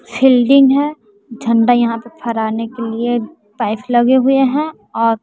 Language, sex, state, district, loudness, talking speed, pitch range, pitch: Hindi, female, Bihar, West Champaran, -15 LUFS, 150 wpm, 230-265 Hz, 240 Hz